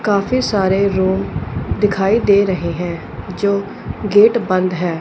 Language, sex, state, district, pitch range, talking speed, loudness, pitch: Hindi, female, Punjab, Fazilka, 185-205 Hz, 130 wpm, -16 LUFS, 200 Hz